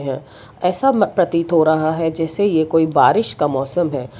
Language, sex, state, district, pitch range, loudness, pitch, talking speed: Hindi, female, Gujarat, Valsad, 140-175 Hz, -17 LUFS, 160 Hz, 200 wpm